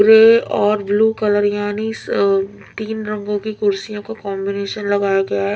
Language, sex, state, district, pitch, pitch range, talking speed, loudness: Hindi, female, Punjab, Fazilka, 205 Hz, 200-215 Hz, 160 wpm, -17 LUFS